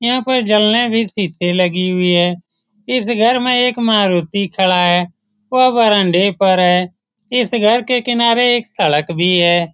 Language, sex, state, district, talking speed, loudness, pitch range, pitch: Hindi, male, Bihar, Saran, 175 wpm, -14 LUFS, 180-240 Hz, 210 Hz